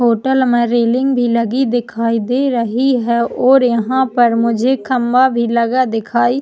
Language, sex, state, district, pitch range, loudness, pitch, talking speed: Hindi, female, Chhattisgarh, Jashpur, 235-255 Hz, -14 LUFS, 240 Hz, 170 wpm